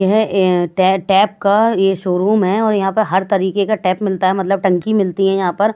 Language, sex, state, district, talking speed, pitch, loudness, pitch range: Hindi, female, Bihar, West Champaran, 220 wpm, 195 Hz, -15 LUFS, 190-205 Hz